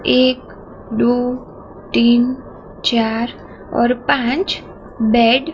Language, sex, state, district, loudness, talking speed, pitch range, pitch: Hindi, female, Gujarat, Gandhinagar, -17 LUFS, 85 wpm, 235-255 Hz, 245 Hz